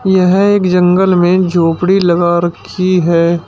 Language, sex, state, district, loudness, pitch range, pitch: Hindi, male, Uttar Pradesh, Shamli, -11 LUFS, 175-185 Hz, 180 Hz